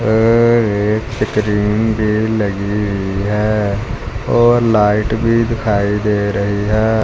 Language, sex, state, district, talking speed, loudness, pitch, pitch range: Hindi, male, Punjab, Fazilka, 120 wpm, -15 LUFS, 105 Hz, 105-110 Hz